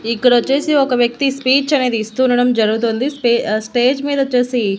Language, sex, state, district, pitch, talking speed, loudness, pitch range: Telugu, female, Andhra Pradesh, Annamaya, 245 Hz, 160 wpm, -15 LUFS, 235-270 Hz